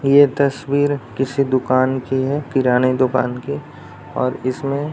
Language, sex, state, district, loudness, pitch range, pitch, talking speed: Hindi, male, Bihar, Jamui, -18 LUFS, 130-140 Hz, 135 Hz, 145 wpm